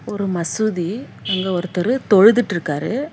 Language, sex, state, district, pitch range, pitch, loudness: Tamil, female, Karnataka, Bangalore, 175-220 Hz, 195 Hz, -18 LUFS